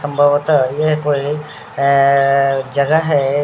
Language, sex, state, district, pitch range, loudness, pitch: Hindi, male, Uttar Pradesh, Hamirpur, 140-150 Hz, -15 LUFS, 145 Hz